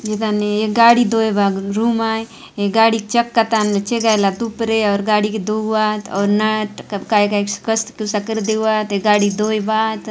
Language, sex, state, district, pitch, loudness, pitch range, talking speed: Halbi, female, Chhattisgarh, Bastar, 215 Hz, -17 LUFS, 210-225 Hz, 190 wpm